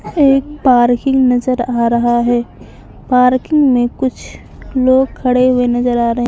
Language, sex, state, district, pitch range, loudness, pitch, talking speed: Hindi, female, Maharashtra, Mumbai Suburban, 240-260 Hz, -13 LUFS, 250 Hz, 160 wpm